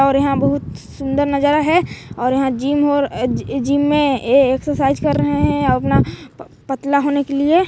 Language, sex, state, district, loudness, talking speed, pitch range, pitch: Hindi, female, Chhattisgarh, Balrampur, -17 LUFS, 180 wpm, 265-285 Hz, 275 Hz